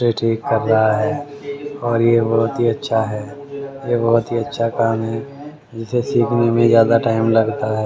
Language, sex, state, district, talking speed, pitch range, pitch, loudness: Hindi, male, Haryana, Rohtak, 185 wpm, 115-135 Hz, 115 Hz, -17 LUFS